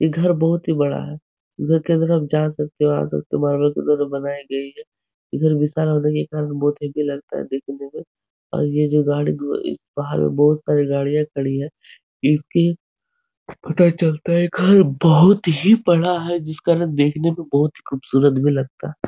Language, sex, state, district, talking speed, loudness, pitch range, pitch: Hindi, male, Uttar Pradesh, Etah, 185 wpm, -19 LUFS, 145-165 Hz, 150 Hz